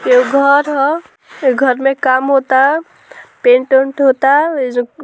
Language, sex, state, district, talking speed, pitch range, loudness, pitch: Bhojpuri, female, Bihar, Muzaffarpur, 165 wpm, 260-280 Hz, -12 LUFS, 270 Hz